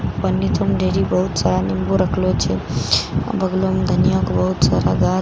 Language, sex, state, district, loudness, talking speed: Maithili, female, Bihar, Katihar, -18 LUFS, 220 wpm